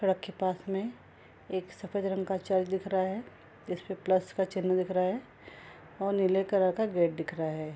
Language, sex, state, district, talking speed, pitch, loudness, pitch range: Hindi, female, Bihar, Gopalganj, 210 wpm, 190 Hz, -31 LUFS, 185-195 Hz